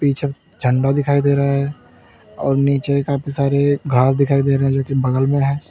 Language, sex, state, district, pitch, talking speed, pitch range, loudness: Hindi, male, Uttar Pradesh, Lalitpur, 140 Hz, 200 wpm, 135-140 Hz, -17 LUFS